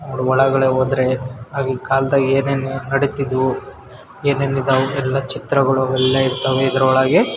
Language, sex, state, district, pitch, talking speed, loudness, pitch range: Kannada, male, Karnataka, Bellary, 135 Hz, 115 wpm, -18 LUFS, 130-135 Hz